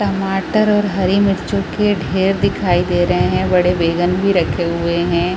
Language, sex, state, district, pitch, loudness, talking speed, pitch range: Hindi, female, Chhattisgarh, Raigarh, 180 Hz, -16 LUFS, 180 wpm, 175-195 Hz